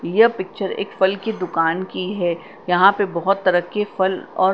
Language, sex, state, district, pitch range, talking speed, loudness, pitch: Hindi, female, Punjab, Kapurthala, 175-195 Hz, 200 wpm, -20 LUFS, 190 Hz